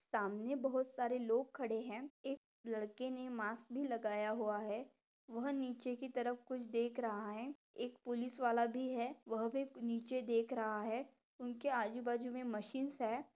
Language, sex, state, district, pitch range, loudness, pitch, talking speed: Hindi, female, Maharashtra, Pune, 225-255 Hz, -42 LUFS, 245 Hz, 170 wpm